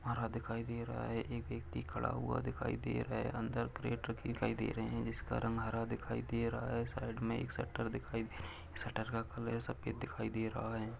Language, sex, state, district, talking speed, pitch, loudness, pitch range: Hindi, male, Uttar Pradesh, Varanasi, 215 wpm, 115 Hz, -40 LUFS, 110-115 Hz